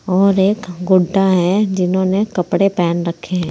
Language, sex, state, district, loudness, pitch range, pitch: Hindi, female, Uttar Pradesh, Saharanpur, -16 LUFS, 180-195 Hz, 185 Hz